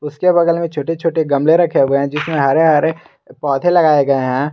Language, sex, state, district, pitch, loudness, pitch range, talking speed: Hindi, male, Jharkhand, Garhwa, 155 Hz, -14 LUFS, 140-165 Hz, 210 wpm